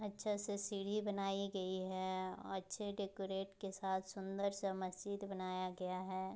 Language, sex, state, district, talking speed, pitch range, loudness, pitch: Hindi, female, Bihar, Muzaffarpur, 150 wpm, 185-200 Hz, -43 LUFS, 195 Hz